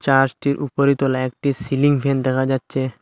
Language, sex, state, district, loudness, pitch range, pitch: Bengali, male, Assam, Hailakandi, -19 LUFS, 130-140 Hz, 135 Hz